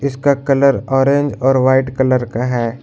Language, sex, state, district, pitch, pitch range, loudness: Hindi, male, Jharkhand, Garhwa, 135 Hz, 125-135 Hz, -15 LUFS